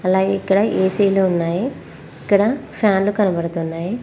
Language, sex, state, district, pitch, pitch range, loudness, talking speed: Telugu, female, Telangana, Mahabubabad, 195 Hz, 180-205 Hz, -18 LUFS, 120 wpm